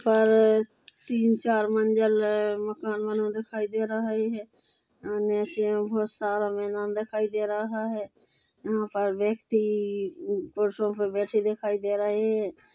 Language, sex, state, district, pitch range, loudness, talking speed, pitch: Hindi, female, Chhattisgarh, Korba, 210-220 Hz, -27 LUFS, 145 wpm, 215 Hz